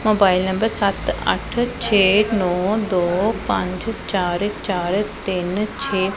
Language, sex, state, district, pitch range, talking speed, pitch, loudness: Punjabi, female, Punjab, Pathankot, 185-215 Hz, 115 wpm, 195 Hz, -20 LUFS